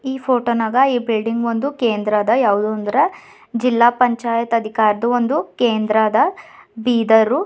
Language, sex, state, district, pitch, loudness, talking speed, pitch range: Kannada, female, Karnataka, Bidar, 235 Hz, -17 LUFS, 130 wpm, 220-245 Hz